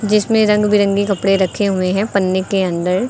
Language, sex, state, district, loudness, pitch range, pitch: Hindi, female, Uttar Pradesh, Lucknow, -15 LUFS, 190-210 Hz, 200 Hz